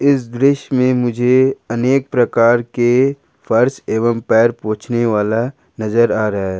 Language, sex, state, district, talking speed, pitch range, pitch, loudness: Hindi, male, Jharkhand, Ranchi, 145 wpm, 115-130 Hz, 120 Hz, -16 LUFS